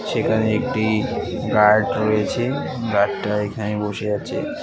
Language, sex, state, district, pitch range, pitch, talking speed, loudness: Bengali, male, West Bengal, Cooch Behar, 105-110 Hz, 105 Hz, 105 wpm, -20 LUFS